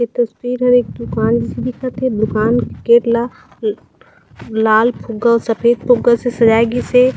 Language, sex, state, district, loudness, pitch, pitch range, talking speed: Chhattisgarhi, female, Chhattisgarh, Raigarh, -15 LUFS, 235 Hz, 225-245 Hz, 185 wpm